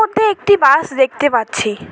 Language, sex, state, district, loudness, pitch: Bengali, female, West Bengal, Cooch Behar, -14 LUFS, 290 Hz